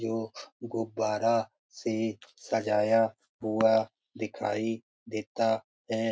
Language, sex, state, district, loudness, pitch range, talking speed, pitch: Hindi, male, Bihar, Lakhisarai, -30 LUFS, 110-115 Hz, 80 wpm, 110 Hz